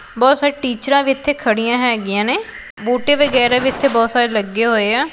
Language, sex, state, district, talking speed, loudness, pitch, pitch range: Punjabi, female, Punjab, Pathankot, 200 wpm, -15 LUFS, 250 Hz, 230-280 Hz